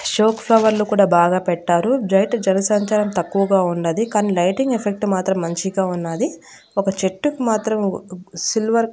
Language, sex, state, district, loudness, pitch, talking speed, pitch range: Telugu, female, Andhra Pradesh, Annamaya, -18 LUFS, 195 Hz, 130 wpm, 185-220 Hz